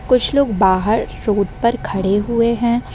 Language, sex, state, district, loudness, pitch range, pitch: Hindi, female, Bihar, Sitamarhi, -16 LUFS, 200-240 Hz, 230 Hz